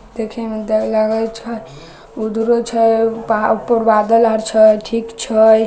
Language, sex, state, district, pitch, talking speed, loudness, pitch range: Maithili, female, Bihar, Samastipur, 225 Hz, 150 wpm, -15 LUFS, 220-230 Hz